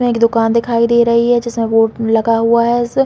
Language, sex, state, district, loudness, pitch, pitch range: Hindi, female, Chhattisgarh, Balrampur, -13 LUFS, 235 Hz, 230-235 Hz